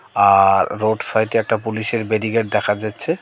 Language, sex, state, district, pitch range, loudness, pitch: Bengali, male, West Bengal, Cooch Behar, 105-115 Hz, -18 LUFS, 110 Hz